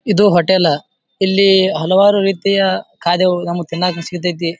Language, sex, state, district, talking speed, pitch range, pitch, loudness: Kannada, male, Karnataka, Bijapur, 115 wpm, 175-195 Hz, 185 Hz, -14 LUFS